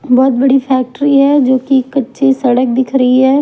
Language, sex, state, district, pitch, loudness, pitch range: Hindi, female, Himachal Pradesh, Shimla, 265 Hz, -11 LUFS, 255-275 Hz